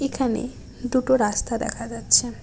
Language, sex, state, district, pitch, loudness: Bengali, female, West Bengal, Cooch Behar, 230 Hz, -22 LUFS